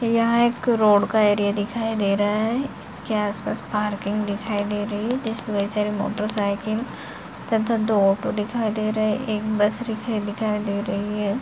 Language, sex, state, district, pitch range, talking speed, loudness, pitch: Hindi, female, Bihar, Saharsa, 205-225 Hz, 180 wpm, -23 LUFS, 210 Hz